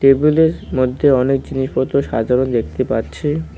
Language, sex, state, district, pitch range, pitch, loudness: Bengali, male, West Bengal, Cooch Behar, 125-145 Hz, 130 Hz, -17 LUFS